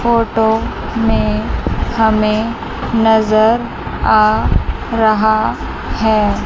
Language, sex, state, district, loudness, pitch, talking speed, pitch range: Hindi, female, Chandigarh, Chandigarh, -15 LUFS, 220 Hz, 65 wpm, 215-225 Hz